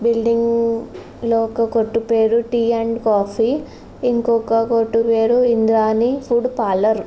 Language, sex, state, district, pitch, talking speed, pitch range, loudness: Telugu, female, Andhra Pradesh, Srikakulam, 230 Hz, 120 wpm, 225-235 Hz, -18 LUFS